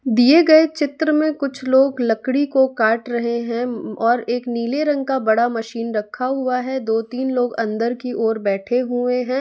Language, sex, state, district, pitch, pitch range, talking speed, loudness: Hindi, female, Bihar, West Champaran, 245 Hz, 230-265 Hz, 190 wpm, -19 LUFS